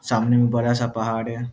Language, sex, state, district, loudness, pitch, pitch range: Hindi, male, Bihar, Muzaffarpur, -21 LUFS, 120 Hz, 115-120 Hz